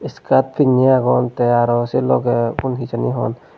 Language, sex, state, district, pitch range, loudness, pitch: Chakma, male, Tripura, Unakoti, 120-130 Hz, -17 LUFS, 125 Hz